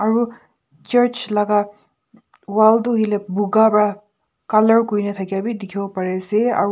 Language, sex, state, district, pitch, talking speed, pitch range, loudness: Nagamese, female, Nagaland, Kohima, 210 Hz, 135 wpm, 205-225 Hz, -18 LUFS